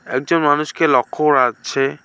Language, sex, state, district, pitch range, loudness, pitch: Bengali, male, West Bengal, Alipurduar, 135-150 Hz, -16 LUFS, 145 Hz